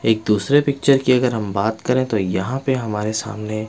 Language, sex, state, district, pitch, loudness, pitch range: Hindi, male, Bihar, West Champaran, 110 Hz, -19 LUFS, 110-130 Hz